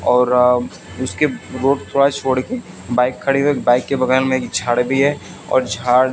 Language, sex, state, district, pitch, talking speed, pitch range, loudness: Hindi, male, Haryana, Jhajjar, 130 Hz, 195 wpm, 125-135 Hz, -17 LUFS